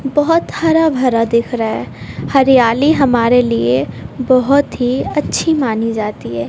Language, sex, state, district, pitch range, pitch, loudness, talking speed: Hindi, female, Bihar, West Champaran, 210-275 Hz, 240 Hz, -14 LUFS, 140 wpm